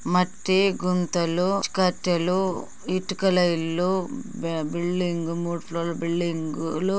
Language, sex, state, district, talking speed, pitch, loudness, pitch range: Telugu, female, Andhra Pradesh, Guntur, 70 wpm, 180 Hz, -25 LUFS, 170-185 Hz